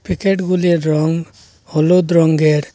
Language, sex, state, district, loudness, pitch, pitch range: Bengali, male, Assam, Hailakandi, -15 LUFS, 165 Hz, 155-180 Hz